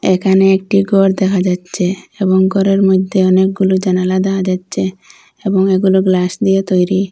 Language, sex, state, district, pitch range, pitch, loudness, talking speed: Bengali, female, Assam, Hailakandi, 185-195 Hz, 190 Hz, -13 LUFS, 145 wpm